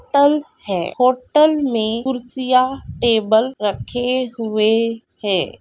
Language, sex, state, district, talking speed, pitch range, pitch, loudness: Hindi, female, Bihar, Purnia, 95 wpm, 220-260 Hz, 245 Hz, -18 LUFS